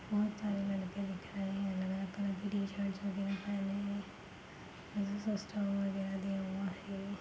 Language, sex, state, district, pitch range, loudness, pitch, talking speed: Hindi, female, Chhattisgarh, Sarguja, 195-200 Hz, -39 LUFS, 200 Hz, 75 wpm